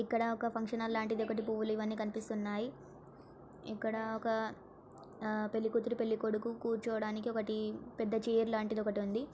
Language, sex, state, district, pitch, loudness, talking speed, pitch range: Telugu, female, Telangana, Nalgonda, 220 Hz, -37 LUFS, 120 wpm, 215-230 Hz